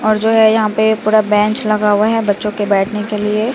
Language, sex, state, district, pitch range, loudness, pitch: Hindi, female, Bihar, Katihar, 210-220 Hz, -14 LUFS, 215 Hz